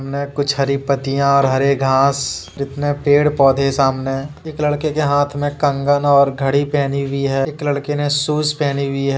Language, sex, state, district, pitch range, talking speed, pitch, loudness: Hindi, male, Jharkhand, Deoghar, 135-145 Hz, 195 wpm, 140 Hz, -17 LUFS